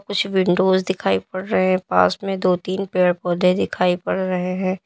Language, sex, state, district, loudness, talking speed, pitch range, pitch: Hindi, female, Uttar Pradesh, Lalitpur, -20 LUFS, 195 wpm, 180-190 Hz, 185 Hz